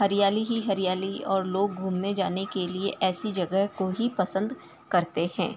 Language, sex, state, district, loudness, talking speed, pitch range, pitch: Hindi, female, Uttar Pradesh, Ghazipur, -27 LUFS, 170 wpm, 185-200 Hz, 190 Hz